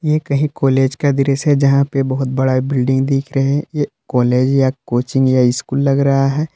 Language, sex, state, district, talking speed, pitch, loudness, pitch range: Hindi, male, Jharkhand, Palamu, 210 wpm, 135 Hz, -15 LUFS, 130-140 Hz